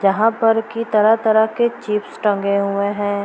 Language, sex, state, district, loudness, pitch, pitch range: Hindi, female, Bihar, Purnia, -17 LUFS, 210 Hz, 200-225 Hz